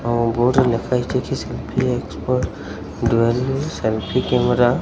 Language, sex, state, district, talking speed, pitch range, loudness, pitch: Odia, male, Odisha, Sambalpur, 150 wpm, 115-125 Hz, -20 LUFS, 120 Hz